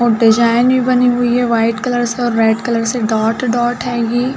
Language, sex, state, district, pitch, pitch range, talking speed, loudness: Hindi, female, Uttar Pradesh, Budaun, 240 Hz, 230-245 Hz, 205 wpm, -14 LUFS